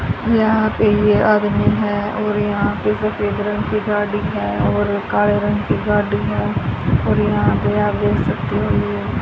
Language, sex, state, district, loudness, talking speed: Hindi, female, Haryana, Charkhi Dadri, -17 LUFS, 180 wpm